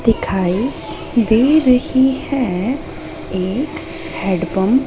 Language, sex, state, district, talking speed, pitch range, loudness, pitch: Hindi, female, Madhya Pradesh, Katni, 85 wpm, 190-270 Hz, -17 LUFS, 245 Hz